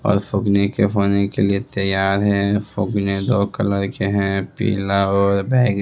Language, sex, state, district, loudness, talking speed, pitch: Hindi, male, Bihar, West Champaran, -19 LUFS, 145 wpm, 100 Hz